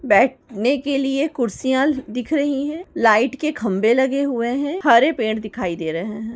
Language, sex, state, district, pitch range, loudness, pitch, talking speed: Hindi, female, Maharashtra, Chandrapur, 220-280 Hz, -19 LUFS, 255 Hz, 180 wpm